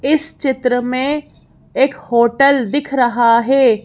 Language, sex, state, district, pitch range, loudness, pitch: Hindi, female, Madhya Pradesh, Bhopal, 240-280 Hz, -15 LUFS, 265 Hz